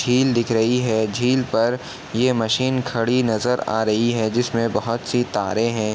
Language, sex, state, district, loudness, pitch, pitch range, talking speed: Hindi, male, Uttar Pradesh, Etah, -20 LUFS, 115 Hz, 110-125 Hz, 190 wpm